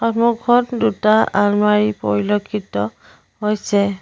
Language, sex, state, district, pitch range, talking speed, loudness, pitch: Assamese, female, Assam, Sonitpur, 200-225 Hz, 75 wpm, -17 LUFS, 210 Hz